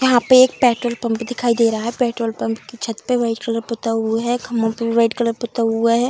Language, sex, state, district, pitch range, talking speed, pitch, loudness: Hindi, female, Uttar Pradesh, Deoria, 230-245 Hz, 255 wpm, 235 Hz, -18 LUFS